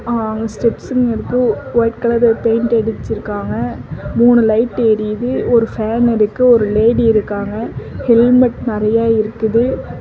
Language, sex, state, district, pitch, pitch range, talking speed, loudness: Tamil, female, Tamil Nadu, Namakkal, 230 Hz, 215-235 Hz, 115 wpm, -15 LUFS